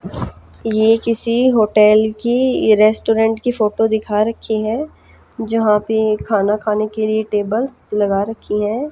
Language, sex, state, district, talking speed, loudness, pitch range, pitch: Hindi, female, Haryana, Jhajjar, 135 wpm, -16 LUFS, 210-225 Hz, 220 Hz